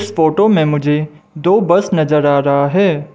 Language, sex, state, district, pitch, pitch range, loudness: Hindi, male, Mizoram, Aizawl, 155 Hz, 150-185 Hz, -13 LUFS